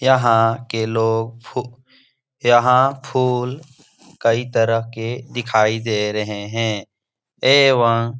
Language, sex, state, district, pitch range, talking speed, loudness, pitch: Hindi, male, Bihar, Jahanabad, 115-130 Hz, 110 wpm, -18 LUFS, 120 Hz